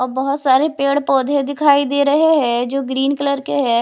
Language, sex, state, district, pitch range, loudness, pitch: Hindi, female, Himachal Pradesh, Shimla, 265-285 Hz, -16 LUFS, 275 Hz